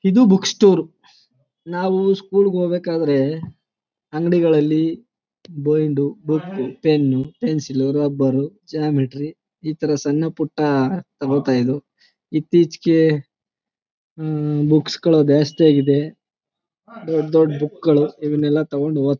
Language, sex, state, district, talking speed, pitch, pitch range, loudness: Kannada, male, Karnataka, Chamarajanagar, 105 wpm, 155 Hz, 145-170 Hz, -18 LUFS